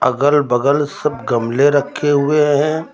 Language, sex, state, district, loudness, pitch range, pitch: Hindi, male, Uttar Pradesh, Lucknow, -15 LUFS, 140-150 Hz, 145 Hz